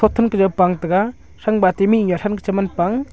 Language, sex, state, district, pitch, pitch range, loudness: Wancho, male, Arunachal Pradesh, Longding, 200 Hz, 185-215 Hz, -18 LUFS